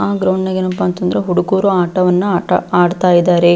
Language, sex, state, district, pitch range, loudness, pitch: Kannada, female, Karnataka, Belgaum, 175-190 Hz, -14 LUFS, 180 Hz